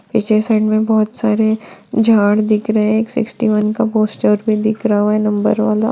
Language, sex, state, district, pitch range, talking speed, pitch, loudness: Hindi, female, Bihar, Saran, 215-220 Hz, 200 wpm, 215 Hz, -15 LUFS